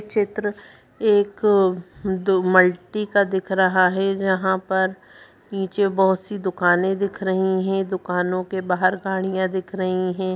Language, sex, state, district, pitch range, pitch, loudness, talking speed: Hindi, female, Bihar, Jahanabad, 185-195 Hz, 190 Hz, -21 LUFS, 135 wpm